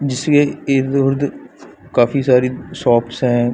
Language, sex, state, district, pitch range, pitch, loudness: Hindi, male, Chhattisgarh, Bilaspur, 125-140 Hz, 135 Hz, -16 LUFS